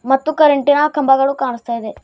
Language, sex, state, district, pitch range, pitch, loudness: Kannada, male, Karnataka, Bidar, 250-290 Hz, 270 Hz, -15 LUFS